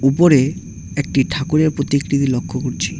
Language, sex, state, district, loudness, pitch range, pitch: Bengali, male, West Bengal, Cooch Behar, -17 LUFS, 135-150 Hz, 140 Hz